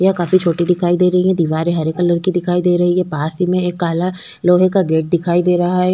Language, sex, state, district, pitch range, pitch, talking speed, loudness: Hindi, female, Chhattisgarh, Korba, 170-180 Hz, 175 Hz, 270 wpm, -15 LUFS